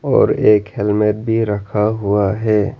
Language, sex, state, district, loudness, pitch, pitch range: Hindi, male, Arunachal Pradesh, Lower Dibang Valley, -16 LUFS, 105 Hz, 105-110 Hz